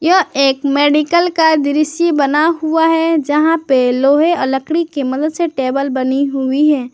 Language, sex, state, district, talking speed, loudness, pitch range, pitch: Hindi, male, Jharkhand, Garhwa, 175 wpm, -14 LUFS, 275-325 Hz, 295 Hz